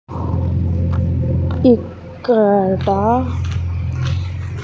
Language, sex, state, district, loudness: Telugu, female, Andhra Pradesh, Sri Satya Sai, -17 LUFS